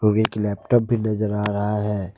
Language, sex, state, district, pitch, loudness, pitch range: Hindi, male, Jharkhand, Ranchi, 105 Hz, -22 LUFS, 105-110 Hz